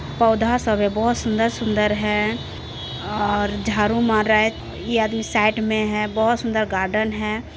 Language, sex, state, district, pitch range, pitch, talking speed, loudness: Maithili, female, Bihar, Supaul, 210-225 Hz, 215 Hz, 160 wpm, -20 LUFS